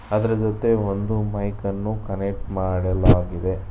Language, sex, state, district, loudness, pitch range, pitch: Kannada, male, Karnataka, Bangalore, -23 LUFS, 95-110 Hz, 100 Hz